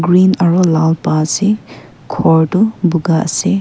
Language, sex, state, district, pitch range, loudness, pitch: Nagamese, female, Nagaland, Kohima, 160-195 Hz, -13 LUFS, 175 Hz